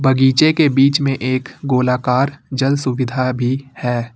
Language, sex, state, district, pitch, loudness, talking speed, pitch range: Hindi, male, Uttar Pradesh, Lucknow, 130 Hz, -16 LUFS, 145 wpm, 125-140 Hz